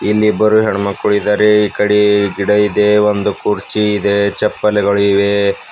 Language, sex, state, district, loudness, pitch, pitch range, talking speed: Kannada, male, Karnataka, Bidar, -13 LUFS, 105 Hz, 100-105 Hz, 135 wpm